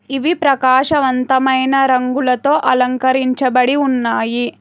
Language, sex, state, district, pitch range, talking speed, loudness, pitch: Telugu, female, Telangana, Hyderabad, 255-275 Hz, 65 wpm, -14 LUFS, 260 Hz